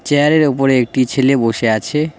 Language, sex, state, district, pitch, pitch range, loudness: Bengali, male, West Bengal, Cooch Behar, 135 Hz, 120-150 Hz, -14 LUFS